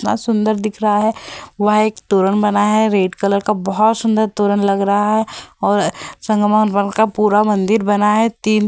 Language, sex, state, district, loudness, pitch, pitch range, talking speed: Hindi, female, Bihar, Vaishali, -15 LUFS, 210 Hz, 205-215 Hz, 200 wpm